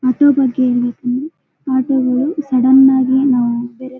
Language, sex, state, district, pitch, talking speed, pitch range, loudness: Kannada, female, Karnataka, Bellary, 260 Hz, 135 wpm, 250-270 Hz, -14 LUFS